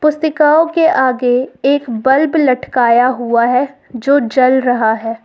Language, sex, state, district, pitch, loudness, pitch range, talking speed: Hindi, female, Jharkhand, Ranchi, 255 Hz, -13 LUFS, 245-285 Hz, 125 wpm